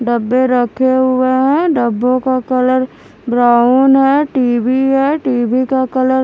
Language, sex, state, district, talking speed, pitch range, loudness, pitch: Hindi, female, Haryana, Charkhi Dadri, 145 wpm, 245-265 Hz, -13 LUFS, 255 Hz